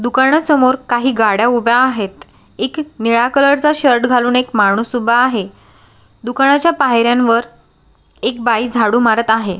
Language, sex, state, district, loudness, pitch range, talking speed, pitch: Marathi, female, Maharashtra, Solapur, -13 LUFS, 225-260 Hz, 140 wpm, 240 Hz